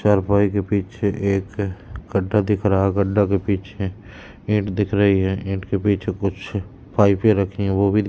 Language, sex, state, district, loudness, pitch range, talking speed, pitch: Hindi, male, Madhya Pradesh, Katni, -21 LUFS, 95-105 Hz, 180 wpm, 100 Hz